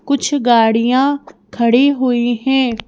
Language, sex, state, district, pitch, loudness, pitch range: Hindi, female, Madhya Pradesh, Bhopal, 255 Hz, -14 LUFS, 235-275 Hz